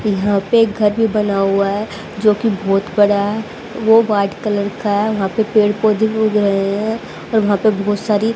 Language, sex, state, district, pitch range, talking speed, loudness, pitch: Hindi, female, Haryana, Jhajjar, 200-220 Hz, 230 wpm, -16 LUFS, 210 Hz